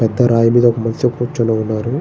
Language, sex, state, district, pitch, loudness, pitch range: Telugu, male, Andhra Pradesh, Srikakulam, 115 Hz, -15 LUFS, 115-120 Hz